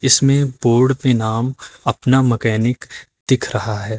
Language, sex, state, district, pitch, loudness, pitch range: Hindi, male, Uttar Pradesh, Lucknow, 125 Hz, -17 LUFS, 115-130 Hz